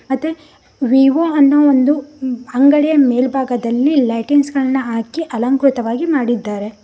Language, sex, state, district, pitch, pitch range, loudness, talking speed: Kannada, female, Karnataka, Koppal, 265 Hz, 245-290 Hz, -15 LUFS, 95 wpm